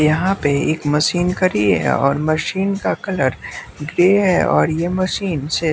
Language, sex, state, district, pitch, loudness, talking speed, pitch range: Hindi, male, Bihar, West Champaran, 165 Hz, -17 LUFS, 165 wpm, 150-185 Hz